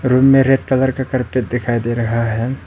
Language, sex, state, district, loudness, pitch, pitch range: Hindi, male, Arunachal Pradesh, Papum Pare, -16 LUFS, 125 Hz, 120-130 Hz